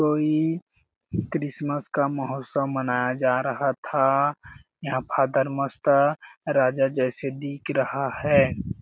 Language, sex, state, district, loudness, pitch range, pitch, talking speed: Hindi, male, Chhattisgarh, Balrampur, -24 LUFS, 130-145 Hz, 140 Hz, 110 wpm